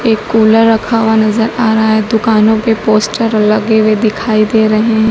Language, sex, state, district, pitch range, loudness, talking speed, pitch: Hindi, female, Madhya Pradesh, Dhar, 215-225 Hz, -11 LUFS, 190 wpm, 220 Hz